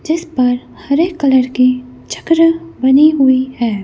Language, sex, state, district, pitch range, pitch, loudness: Hindi, female, Madhya Pradesh, Bhopal, 255-325 Hz, 265 Hz, -13 LUFS